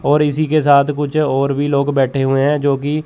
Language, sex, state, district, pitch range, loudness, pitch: Hindi, male, Chandigarh, Chandigarh, 140-150 Hz, -15 LUFS, 145 Hz